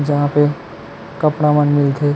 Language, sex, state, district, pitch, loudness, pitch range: Chhattisgarhi, male, Chhattisgarh, Kabirdham, 145 Hz, -16 LUFS, 145-150 Hz